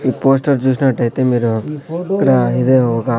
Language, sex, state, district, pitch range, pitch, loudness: Telugu, male, Andhra Pradesh, Sri Satya Sai, 120-135 Hz, 130 Hz, -15 LUFS